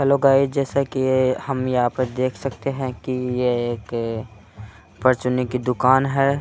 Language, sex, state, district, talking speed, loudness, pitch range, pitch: Hindi, male, Uttar Pradesh, Muzaffarnagar, 160 wpm, -21 LUFS, 120-135 Hz, 130 Hz